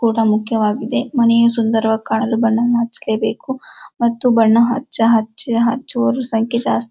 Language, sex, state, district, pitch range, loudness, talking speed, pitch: Kannada, male, Karnataka, Dharwad, 225-245 Hz, -16 LUFS, 120 wpm, 230 Hz